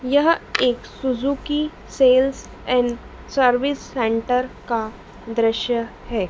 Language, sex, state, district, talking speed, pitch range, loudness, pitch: Hindi, female, Madhya Pradesh, Dhar, 95 wpm, 240-270 Hz, -21 LUFS, 250 Hz